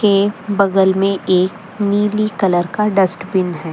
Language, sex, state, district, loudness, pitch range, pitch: Hindi, female, Delhi, New Delhi, -16 LUFS, 185-205 Hz, 195 Hz